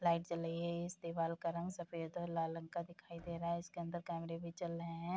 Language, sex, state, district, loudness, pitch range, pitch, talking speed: Hindi, female, Bihar, Bhagalpur, -43 LUFS, 165-170 Hz, 170 Hz, 280 wpm